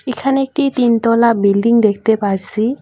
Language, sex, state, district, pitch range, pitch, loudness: Bengali, female, West Bengal, Cooch Behar, 215-255 Hz, 230 Hz, -14 LUFS